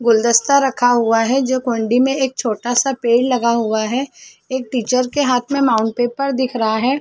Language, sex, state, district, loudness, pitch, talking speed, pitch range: Hindi, female, Chhattisgarh, Balrampur, -16 LUFS, 245 Hz, 215 wpm, 235-265 Hz